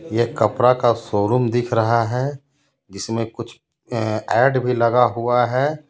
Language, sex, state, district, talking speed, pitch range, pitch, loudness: Hindi, male, Jharkhand, Ranchi, 140 wpm, 115-130 Hz, 120 Hz, -19 LUFS